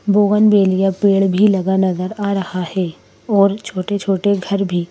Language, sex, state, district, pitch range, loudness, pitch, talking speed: Hindi, female, Madhya Pradesh, Bhopal, 185-205 Hz, -16 LUFS, 195 Hz, 170 wpm